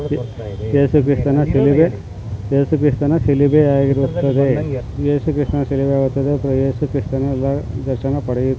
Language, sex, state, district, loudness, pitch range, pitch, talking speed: Kannada, male, Karnataka, Mysore, -17 LUFS, 130-145 Hz, 140 Hz, 100 wpm